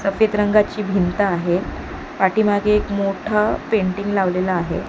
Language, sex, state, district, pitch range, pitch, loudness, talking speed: Marathi, female, Maharashtra, Mumbai Suburban, 190-210 Hz, 200 Hz, -19 LUFS, 125 wpm